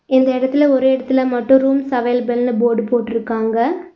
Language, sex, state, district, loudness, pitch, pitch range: Tamil, female, Tamil Nadu, Nilgiris, -16 LUFS, 255 Hz, 240-265 Hz